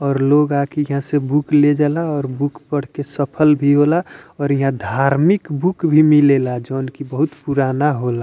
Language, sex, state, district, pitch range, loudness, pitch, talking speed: Bhojpuri, male, Bihar, Muzaffarpur, 135-150 Hz, -17 LUFS, 145 Hz, 190 wpm